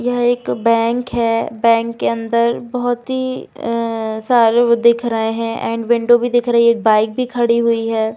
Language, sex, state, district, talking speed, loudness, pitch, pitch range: Hindi, female, Uttar Pradesh, Jalaun, 205 wpm, -16 LUFS, 235 Hz, 230-240 Hz